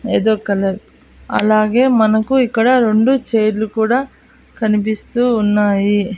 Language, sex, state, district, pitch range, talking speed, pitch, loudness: Telugu, female, Andhra Pradesh, Annamaya, 210-240 Hz, 95 wpm, 220 Hz, -15 LUFS